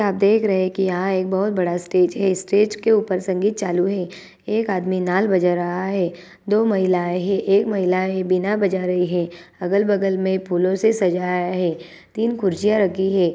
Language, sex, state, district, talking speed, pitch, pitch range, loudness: Hindi, female, Chhattisgarh, Bilaspur, 190 wpm, 190 Hz, 180-200 Hz, -20 LUFS